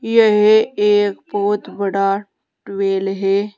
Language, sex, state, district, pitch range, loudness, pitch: Hindi, female, Uttar Pradesh, Saharanpur, 195-210 Hz, -16 LUFS, 205 Hz